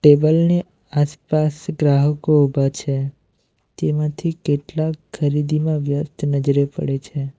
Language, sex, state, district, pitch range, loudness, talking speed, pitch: Gujarati, male, Gujarat, Valsad, 140-155 Hz, -20 LUFS, 105 wpm, 145 Hz